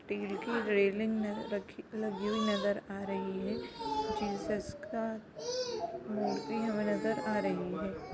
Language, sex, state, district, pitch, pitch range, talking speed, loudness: Hindi, female, Chhattisgarh, Kabirdham, 215 Hz, 205-225 Hz, 135 wpm, -35 LUFS